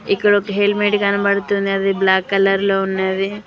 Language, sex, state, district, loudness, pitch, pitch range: Telugu, female, Telangana, Mahabubabad, -17 LUFS, 200 Hz, 195-205 Hz